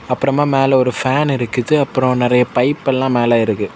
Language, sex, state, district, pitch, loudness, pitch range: Tamil, male, Tamil Nadu, Kanyakumari, 130 Hz, -15 LUFS, 125-135 Hz